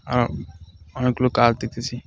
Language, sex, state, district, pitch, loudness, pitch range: Bengali, male, West Bengal, Alipurduar, 120 Hz, -22 LUFS, 90-125 Hz